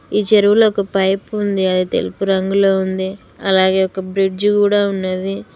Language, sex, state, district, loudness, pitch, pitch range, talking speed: Telugu, female, Telangana, Mahabubabad, -16 LUFS, 195 Hz, 190-205 Hz, 150 wpm